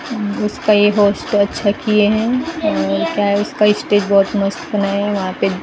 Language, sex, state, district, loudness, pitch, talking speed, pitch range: Hindi, female, Maharashtra, Gondia, -16 LUFS, 205 Hz, 180 wpm, 200-210 Hz